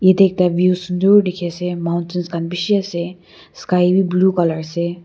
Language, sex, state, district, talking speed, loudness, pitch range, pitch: Nagamese, female, Nagaland, Kohima, 180 wpm, -17 LUFS, 170-185 Hz, 180 Hz